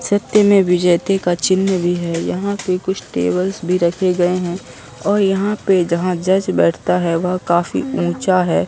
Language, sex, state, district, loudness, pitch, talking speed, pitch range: Hindi, male, Bihar, Katihar, -17 LUFS, 180 Hz, 175 wpm, 170-190 Hz